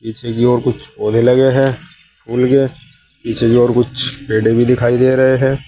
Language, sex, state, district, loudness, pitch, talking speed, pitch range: Hindi, male, Uttar Pradesh, Saharanpur, -14 LUFS, 125 Hz, 190 wpm, 120-135 Hz